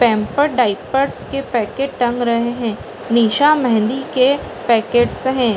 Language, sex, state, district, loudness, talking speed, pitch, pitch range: Hindi, female, Uttar Pradesh, Deoria, -17 LUFS, 130 wpm, 245 Hz, 230-270 Hz